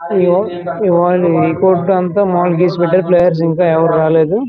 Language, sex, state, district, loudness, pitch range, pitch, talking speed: Telugu, male, Andhra Pradesh, Guntur, -12 LUFS, 170-185 Hz, 175 Hz, 95 wpm